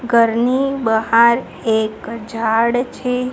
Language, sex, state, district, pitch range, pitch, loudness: Gujarati, female, Gujarat, Gandhinagar, 225-250 Hz, 235 Hz, -17 LUFS